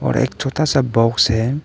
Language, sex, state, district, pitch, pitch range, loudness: Hindi, male, Arunachal Pradesh, Papum Pare, 125 Hz, 115-135 Hz, -17 LUFS